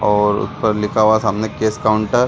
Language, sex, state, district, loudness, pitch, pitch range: Hindi, male, Chhattisgarh, Sarguja, -17 LUFS, 110 Hz, 105-110 Hz